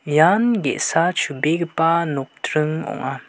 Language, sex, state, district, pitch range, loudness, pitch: Garo, male, Meghalaya, West Garo Hills, 155-170 Hz, -20 LUFS, 160 Hz